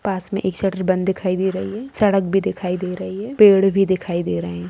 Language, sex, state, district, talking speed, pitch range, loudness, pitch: Hindi, female, Bihar, Muzaffarpur, 270 wpm, 185-195 Hz, -19 LUFS, 190 Hz